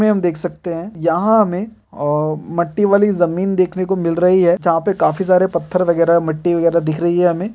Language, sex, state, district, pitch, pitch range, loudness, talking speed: Hindi, male, Chhattisgarh, Kabirdham, 175 Hz, 170-190 Hz, -16 LUFS, 230 wpm